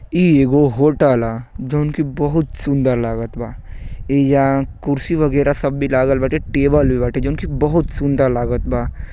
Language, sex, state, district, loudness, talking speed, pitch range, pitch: Bhojpuri, male, Uttar Pradesh, Gorakhpur, -17 LUFS, 170 wpm, 120-145 Hz, 140 Hz